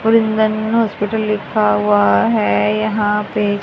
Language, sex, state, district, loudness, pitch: Hindi, female, Haryana, Charkhi Dadri, -16 LUFS, 210 Hz